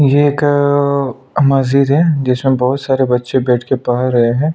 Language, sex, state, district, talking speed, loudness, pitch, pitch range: Hindi, male, Chhattisgarh, Sukma, 170 wpm, -14 LUFS, 135 Hz, 125-140 Hz